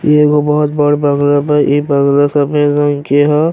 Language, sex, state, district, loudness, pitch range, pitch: Bhojpuri, male, Uttar Pradesh, Gorakhpur, -11 LUFS, 145-150 Hz, 145 Hz